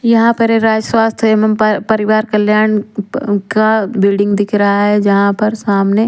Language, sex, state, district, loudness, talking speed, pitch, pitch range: Hindi, female, Haryana, Rohtak, -13 LUFS, 180 wpm, 215 Hz, 205-220 Hz